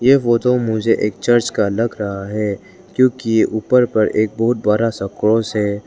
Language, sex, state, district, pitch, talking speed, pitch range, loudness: Hindi, male, Arunachal Pradesh, Lower Dibang Valley, 115 Hz, 185 wpm, 105-120 Hz, -17 LUFS